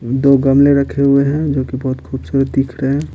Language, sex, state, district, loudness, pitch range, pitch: Hindi, male, Bihar, Patna, -14 LUFS, 135-140 Hz, 135 Hz